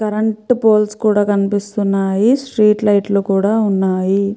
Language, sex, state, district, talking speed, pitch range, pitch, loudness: Telugu, female, Andhra Pradesh, Chittoor, 125 wpm, 200-215 Hz, 205 Hz, -15 LUFS